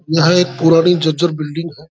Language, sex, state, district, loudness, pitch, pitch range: Hindi, male, Jharkhand, Sahebganj, -14 LUFS, 165 Hz, 160-175 Hz